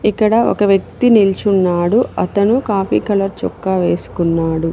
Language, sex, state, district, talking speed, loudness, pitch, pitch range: Telugu, female, Telangana, Mahabubabad, 115 wpm, -15 LUFS, 195 Hz, 175-215 Hz